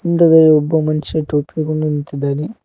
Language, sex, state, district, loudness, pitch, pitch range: Kannada, male, Karnataka, Koppal, -15 LUFS, 155 Hz, 150-160 Hz